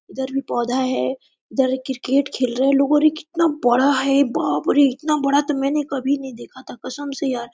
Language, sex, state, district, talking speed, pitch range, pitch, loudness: Hindi, female, Jharkhand, Sahebganj, 215 wpm, 260-285 Hz, 275 Hz, -20 LUFS